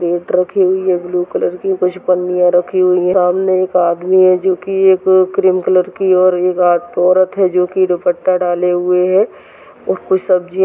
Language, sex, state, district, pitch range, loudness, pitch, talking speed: Hindi, male, Chhattisgarh, Sarguja, 180-185 Hz, -13 LUFS, 185 Hz, 195 wpm